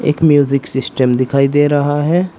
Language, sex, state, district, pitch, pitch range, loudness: Hindi, male, Uttar Pradesh, Saharanpur, 145 Hz, 135-150 Hz, -14 LUFS